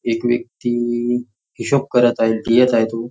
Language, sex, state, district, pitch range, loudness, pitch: Marathi, male, Maharashtra, Nagpur, 115-120 Hz, -18 LUFS, 120 Hz